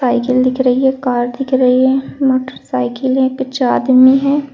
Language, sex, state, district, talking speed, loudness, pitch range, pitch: Hindi, female, Uttar Pradesh, Shamli, 170 wpm, -14 LUFS, 255-265 Hz, 260 Hz